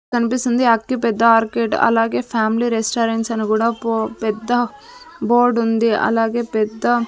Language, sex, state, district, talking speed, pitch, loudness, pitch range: Telugu, female, Andhra Pradesh, Sri Satya Sai, 125 wpm, 230 Hz, -18 LUFS, 225-240 Hz